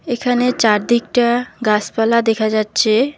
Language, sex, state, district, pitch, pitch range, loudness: Bengali, female, West Bengal, Alipurduar, 235 Hz, 215-245 Hz, -16 LUFS